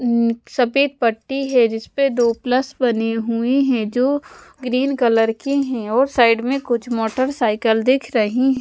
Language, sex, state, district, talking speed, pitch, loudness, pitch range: Hindi, female, Odisha, Sambalpur, 155 wpm, 245 Hz, -18 LUFS, 230-270 Hz